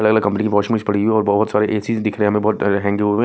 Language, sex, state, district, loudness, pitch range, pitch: Hindi, male, Punjab, Kapurthala, -18 LUFS, 105-110 Hz, 105 Hz